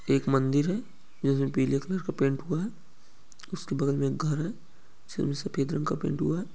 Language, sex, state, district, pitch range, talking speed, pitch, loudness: Hindi, male, Bihar, Muzaffarpur, 135-185 Hz, 210 wpm, 155 Hz, -29 LUFS